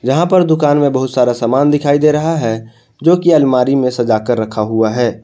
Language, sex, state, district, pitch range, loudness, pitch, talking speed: Hindi, male, Jharkhand, Palamu, 115-150 Hz, -13 LUFS, 130 Hz, 230 wpm